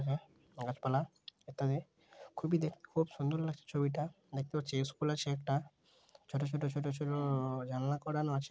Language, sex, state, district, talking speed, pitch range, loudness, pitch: Bengali, male, West Bengal, Malda, 150 wpm, 140-155 Hz, -37 LUFS, 145 Hz